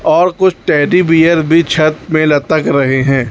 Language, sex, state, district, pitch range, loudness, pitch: Hindi, male, Chhattisgarh, Raipur, 145-175 Hz, -11 LUFS, 160 Hz